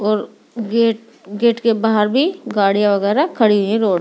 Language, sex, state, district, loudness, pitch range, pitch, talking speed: Hindi, female, Delhi, New Delhi, -16 LUFS, 205-230 Hz, 220 Hz, 165 wpm